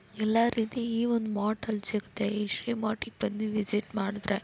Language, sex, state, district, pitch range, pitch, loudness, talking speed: Kannada, female, Karnataka, Belgaum, 210-230 Hz, 215 Hz, -30 LUFS, 175 wpm